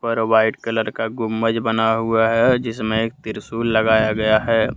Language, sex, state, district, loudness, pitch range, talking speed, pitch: Hindi, male, Jharkhand, Deoghar, -19 LUFS, 110-115 Hz, 175 wpm, 115 Hz